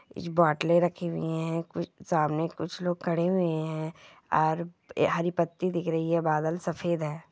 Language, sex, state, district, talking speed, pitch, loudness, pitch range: Hindi, female, Bihar, Jamui, 170 wpm, 165 Hz, -28 LUFS, 160-175 Hz